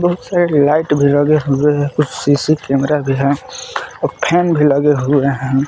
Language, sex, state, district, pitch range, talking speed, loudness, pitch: Hindi, male, Jharkhand, Palamu, 140-155 Hz, 190 wpm, -14 LUFS, 145 Hz